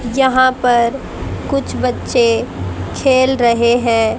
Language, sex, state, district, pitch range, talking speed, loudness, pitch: Hindi, female, Haryana, Jhajjar, 235-260 Hz, 100 wpm, -15 LUFS, 245 Hz